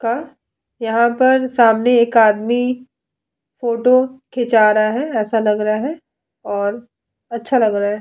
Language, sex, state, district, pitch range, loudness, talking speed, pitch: Hindi, female, Uttar Pradesh, Etah, 220-255 Hz, -16 LUFS, 140 wpm, 235 Hz